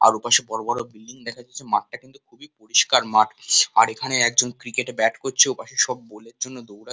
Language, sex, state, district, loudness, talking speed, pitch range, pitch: Bengali, male, West Bengal, Kolkata, -20 LUFS, 210 wpm, 110-125 Hz, 120 Hz